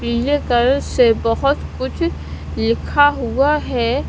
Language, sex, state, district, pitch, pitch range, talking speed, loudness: Hindi, female, Punjab, Kapurthala, 250 Hz, 235-290 Hz, 115 wpm, -17 LUFS